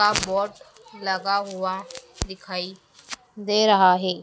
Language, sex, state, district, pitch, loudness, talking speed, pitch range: Hindi, female, Madhya Pradesh, Dhar, 195 Hz, -23 LUFS, 115 wpm, 190-210 Hz